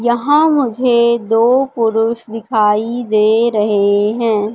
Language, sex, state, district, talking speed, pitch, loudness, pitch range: Hindi, female, Madhya Pradesh, Katni, 105 wpm, 230 Hz, -14 LUFS, 215-240 Hz